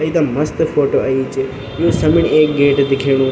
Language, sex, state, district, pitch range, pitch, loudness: Garhwali, male, Uttarakhand, Tehri Garhwal, 135-155 Hz, 140 Hz, -15 LUFS